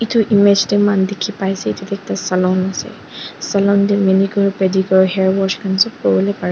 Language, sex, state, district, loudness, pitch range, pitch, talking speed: Nagamese, female, Nagaland, Dimapur, -15 LUFS, 190-200 Hz, 195 Hz, 165 wpm